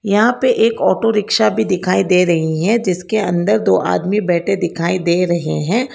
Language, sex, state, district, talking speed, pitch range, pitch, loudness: Hindi, female, Karnataka, Bangalore, 190 wpm, 175-220 Hz, 185 Hz, -15 LUFS